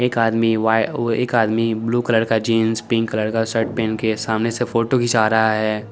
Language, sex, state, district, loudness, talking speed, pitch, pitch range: Hindi, male, Chandigarh, Chandigarh, -19 LUFS, 205 wpm, 115 Hz, 110-115 Hz